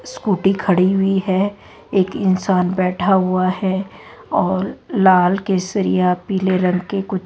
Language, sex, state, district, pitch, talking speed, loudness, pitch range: Hindi, female, Rajasthan, Jaipur, 190 Hz, 130 wpm, -18 LUFS, 185-195 Hz